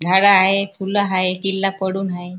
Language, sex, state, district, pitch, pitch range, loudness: Marathi, female, Maharashtra, Chandrapur, 195 Hz, 185-195 Hz, -17 LUFS